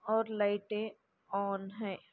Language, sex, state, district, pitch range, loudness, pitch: Hindi, female, Chhattisgarh, Bastar, 200-215 Hz, -36 LUFS, 205 Hz